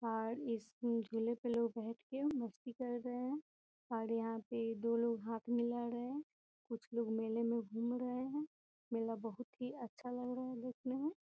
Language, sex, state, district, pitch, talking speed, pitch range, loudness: Hindi, female, Bihar, Gopalganj, 235 Hz, 190 wpm, 230-250 Hz, -42 LUFS